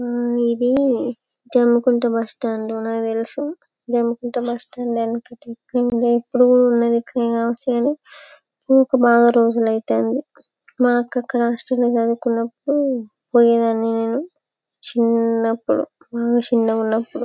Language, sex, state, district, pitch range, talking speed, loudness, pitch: Telugu, female, Telangana, Karimnagar, 230-250 Hz, 75 wpm, -19 LUFS, 240 Hz